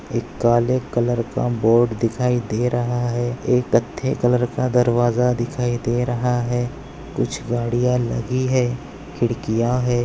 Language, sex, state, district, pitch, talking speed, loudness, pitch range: Hindi, male, Maharashtra, Nagpur, 120 Hz, 145 wpm, -20 LUFS, 120-125 Hz